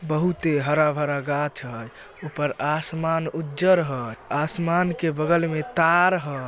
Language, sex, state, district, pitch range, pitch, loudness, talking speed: Magahi, male, Bihar, Samastipur, 145-165 Hz, 155 Hz, -23 LUFS, 130 wpm